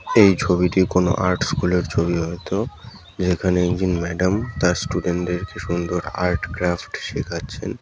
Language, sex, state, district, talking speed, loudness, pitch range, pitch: Bengali, male, West Bengal, Malda, 155 wpm, -21 LUFS, 85-95 Hz, 90 Hz